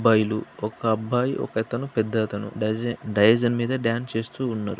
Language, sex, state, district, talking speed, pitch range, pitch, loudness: Telugu, male, Telangana, Karimnagar, 85 wpm, 110-120 Hz, 115 Hz, -24 LUFS